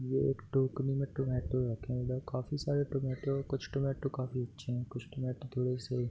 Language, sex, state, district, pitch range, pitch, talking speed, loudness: Hindi, male, Bihar, Darbhanga, 125-135 Hz, 130 Hz, 215 wpm, -35 LUFS